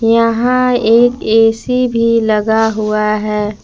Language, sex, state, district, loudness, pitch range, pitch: Hindi, female, Jharkhand, Palamu, -12 LUFS, 215-235 Hz, 225 Hz